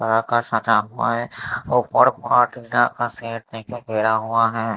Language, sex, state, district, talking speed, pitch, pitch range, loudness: Hindi, male, Maharashtra, Mumbai Suburban, 150 wpm, 115 Hz, 110-120 Hz, -20 LUFS